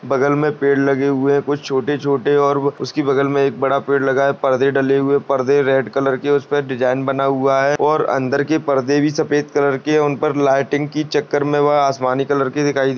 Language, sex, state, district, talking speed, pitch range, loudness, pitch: Hindi, male, Chhattisgarh, Bastar, 220 wpm, 135-145 Hz, -17 LUFS, 140 Hz